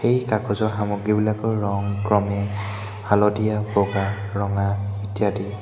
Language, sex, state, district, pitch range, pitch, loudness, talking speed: Assamese, male, Assam, Hailakandi, 100-105 Hz, 100 Hz, -23 LUFS, 95 wpm